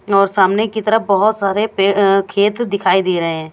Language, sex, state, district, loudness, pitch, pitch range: Hindi, female, Bihar, Kaimur, -15 LUFS, 200 Hz, 195-215 Hz